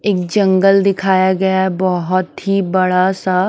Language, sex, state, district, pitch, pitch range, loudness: Hindi, female, Himachal Pradesh, Shimla, 190 Hz, 185-195 Hz, -14 LUFS